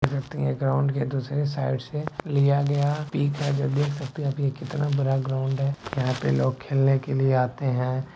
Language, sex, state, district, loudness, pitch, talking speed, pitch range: Maithili, male, Bihar, Bhagalpur, -25 LUFS, 140 Hz, 220 wpm, 135-145 Hz